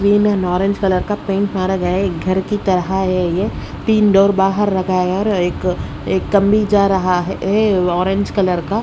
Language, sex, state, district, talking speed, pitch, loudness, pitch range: Hindi, female, Odisha, Sambalpur, 205 wpm, 195 Hz, -16 LUFS, 185-200 Hz